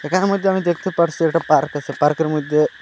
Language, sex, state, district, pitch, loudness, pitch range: Bengali, male, Assam, Hailakandi, 160 Hz, -18 LUFS, 150-185 Hz